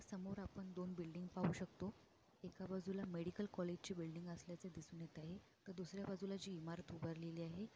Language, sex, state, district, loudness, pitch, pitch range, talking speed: Marathi, female, Maharashtra, Sindhudurg, -50 LUFS, 180 Hz, 170-195 Hz, 180 wpm